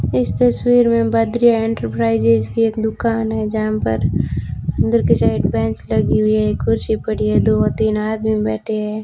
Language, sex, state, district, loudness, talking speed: Hindi, female, Rajasthan, Jaisalmer, -17 LUFS, 180 wpm